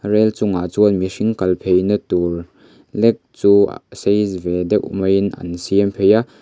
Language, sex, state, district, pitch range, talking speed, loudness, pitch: Mizo, male, Mizoram, Aizawl, 90-105 Hz, 160 wpm, -17 LUFS, 100 Hz